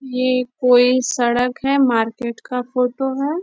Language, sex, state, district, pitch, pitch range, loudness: Hindi, female, Bihar, Bhagalpur, 250 Hz, 245-265 Hz, -18 LUFS